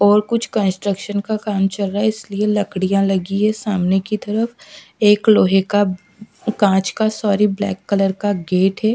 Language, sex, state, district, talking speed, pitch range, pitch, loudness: Hindi, female, Odisha, Sambalpur, 175 wpm, 195-215 Hz, 205 Hz, -18 LUFS